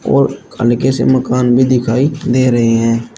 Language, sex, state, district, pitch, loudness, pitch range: Hindi, male, Uttar Pradesh, Shamli, 125 Hz, -13 LUFS, 120-130 Hz